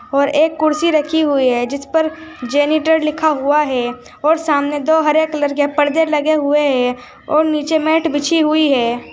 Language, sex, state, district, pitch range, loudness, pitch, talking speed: Hindi, female, Uttar Pradesh, Saharanpur, 285-315 Hz, -15 LUFS, 300 Hz, 185 wpm